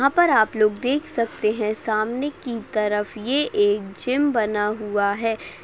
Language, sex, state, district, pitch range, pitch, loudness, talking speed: Hindi, female, Maharashtra, Solapur, 210-260 Hz, 220 Hz, -22 LUFS, 170 wpm